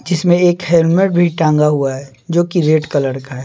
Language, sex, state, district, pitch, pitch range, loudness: Hindi, male, Bihar, Patna, 165 Hz, 140-175 Hz, -14 LUFS